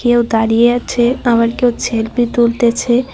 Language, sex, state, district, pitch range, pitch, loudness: Bengali, female, West Bengal, Cooch Behar, 230-240 Hz, 240 Hz, -14 LUFS